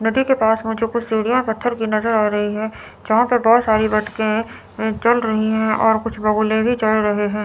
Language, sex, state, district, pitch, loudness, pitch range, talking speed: Hindi, female, Chandigarh, Chandigarh, 220 Hz, -18 LUFS, 215-230 Hz, 220 wpm